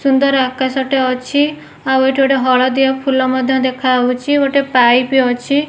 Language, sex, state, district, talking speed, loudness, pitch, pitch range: Odia, female, Odisha, Nuapada, 145 wpm, -14 LUFS, 265 Hz, 255-275 Hz